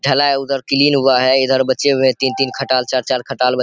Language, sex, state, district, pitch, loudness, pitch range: Hindi, male, Bihar, Saharsa, 135 Hz, -15 LUFS, 130-135 Hz